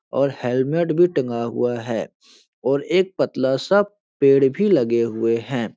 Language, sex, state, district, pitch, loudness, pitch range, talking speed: Hindi, male, Uttar Pradesh, Etah, 135 Hz, -20 LUFS, 120-170 Hz, 155 wpm